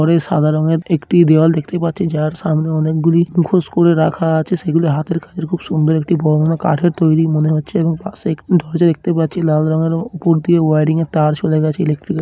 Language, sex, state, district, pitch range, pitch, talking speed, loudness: Bengali, male, West Bengal, Dakshin Dinajpur, 155-170 Hz, 165 Hz, 210 wpm, -15 LUFS